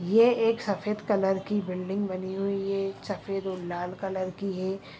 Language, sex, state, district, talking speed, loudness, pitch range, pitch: Hindi, female, Andhra Pradesh, Anantapur, 180 wpm, -29 LUFS, 185-200 Hz, 195 Hz